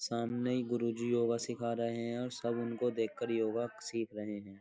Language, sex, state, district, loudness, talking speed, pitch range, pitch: Hindi, male, Uttar Pradesh, Jyotiba Phule Nagar, -36 LUFS, 180 wpm, 115-120 Hz, 115 Hz